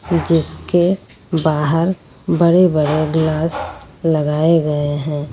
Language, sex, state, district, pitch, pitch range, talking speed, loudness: Hindi, female, Jharkhand, Ranchi, 160 Hz, 150-170 Hz, 90 wpm, -17 LUFS